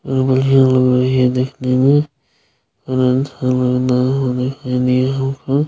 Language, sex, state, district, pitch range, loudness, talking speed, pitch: Maithili, male, Bihar, Supaul, 125-135 Hz, -16 LUFS, 65 wpm, 130 Hz